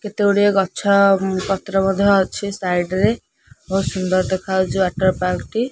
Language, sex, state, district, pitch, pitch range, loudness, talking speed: Odia, female, Odisha, Khordha, 195 Hz, 185-200 Hz, -18 LUFS, 155 wpm